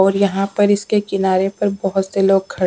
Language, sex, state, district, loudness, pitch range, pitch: Hindi, female, Punjab, Pathankot, -17 LUFS, 195-200 Hz, 195 Hz